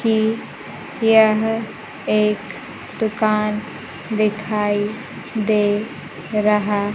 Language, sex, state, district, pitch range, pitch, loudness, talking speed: Hindi, female, Bihar, Kaimur, 210-220 Hz, 215 Hz, -19 LUFS, 60 wpm